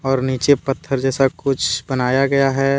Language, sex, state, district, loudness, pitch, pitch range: Hindi, male, Jharkhand, Deoghar, -18 LUFS, 135 Hz, 130-135 Hz